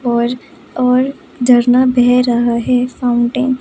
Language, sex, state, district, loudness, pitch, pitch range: Hindi, female, Chandigarh, Chandigarh, -13 LUFS, 245 Hz, 240-255 Hz